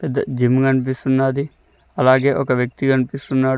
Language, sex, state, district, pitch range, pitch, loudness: Telugu, male, Telangana, Mahabubabad, 130-135 Hz, 130 Hz, -18 LUFS